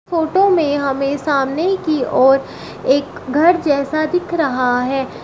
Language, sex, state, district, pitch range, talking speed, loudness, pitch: Hindi, female, Uttar Pradesh, Shamli, 270-335 Hz, 135 wpm, -16 LUFS, 290 Hz